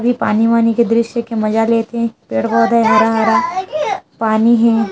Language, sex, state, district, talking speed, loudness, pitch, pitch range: Chhattisgarhi, female, Chhattisgarh, Raigarh, 195 wpm, -14 LUFS, 230 Hz, 220-235 Hz